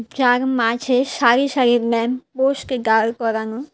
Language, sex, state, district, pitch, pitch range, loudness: Bengali, female, Tripura, West Tripura, 245 Hz, 230-260 Hz, -18 LUFS